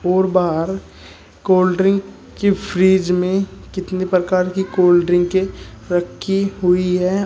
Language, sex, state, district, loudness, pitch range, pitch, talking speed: Hindi, male, Uttar Pradesh, Shamli, -17 LUFS, 180-190 Hz, 185 Hz, 125 wpm